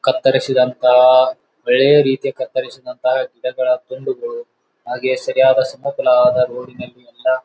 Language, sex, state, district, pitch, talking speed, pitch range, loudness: Kannada, male, Karnataka, Bijapur, 130 Hz, 95 wpm, 130-165 Hz, -16 LUFS